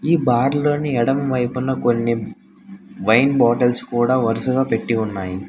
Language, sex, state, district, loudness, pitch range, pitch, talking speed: Telugu, male, Telangana, Hyderabad, -18 LUFS, 115-135 Hz, 125 Hz, 130 wpm